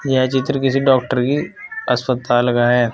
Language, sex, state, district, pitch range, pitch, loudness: Hindi, male, Uttar Pradesh, Saharanpur, 125-140 Hz, 130 Hz, -17 LUFS